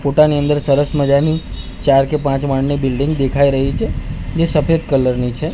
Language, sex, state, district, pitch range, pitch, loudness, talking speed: Gujarati, male, Gujarat, Gandhinagar, 135-150 Hz, 140 Hz, -16 LUFS, 195 wpm